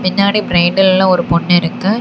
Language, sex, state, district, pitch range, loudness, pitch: Tamil, female, Tamil Nadu, Namakkal, 175-200 Hz, -12 LUFS, 185 Hz